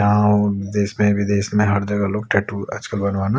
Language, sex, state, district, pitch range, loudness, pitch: Hindi, male, Delhi, New Delhi, 100-105 Hz, -19 LUFS, 100 Hz